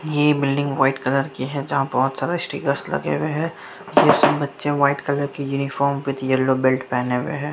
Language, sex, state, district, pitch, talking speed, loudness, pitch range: Hindi, male, Bihar, Saharsa, 140 Hz, 200 wpm, -21 LUFS, 135-145 Hz